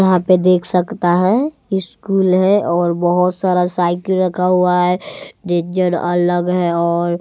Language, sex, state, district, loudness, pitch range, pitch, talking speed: Hindi, male, Bihar, West Champaran, -16 LUFS, 175-185 Hz, 180 Hz, 150 wpm